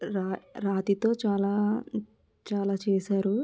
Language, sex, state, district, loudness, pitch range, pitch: Telugu, female, Andhra Pradesh, Krishna, -29 LUFS, 195-215 Hz, 200 Hz